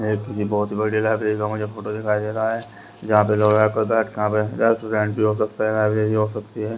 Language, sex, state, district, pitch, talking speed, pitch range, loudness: Hindi, male, Haryana, Rohtak, 105 Hz, 170 wpm, 105-110 Hz, -21 LUFS